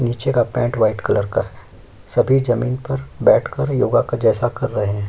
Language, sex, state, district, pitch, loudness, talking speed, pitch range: Hindi, male, Uttar Pradesh, Jyotiba Phule Nagar, 120 Hz, -18 LUFS, 210 wpm, 115-130 Hz